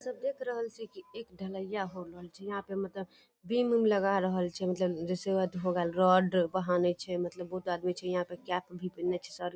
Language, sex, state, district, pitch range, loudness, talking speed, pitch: Hindi, female, Bihar, Darbhanga, 180-195 Hz, -32 LUFS, 220 wpm, 185 Hz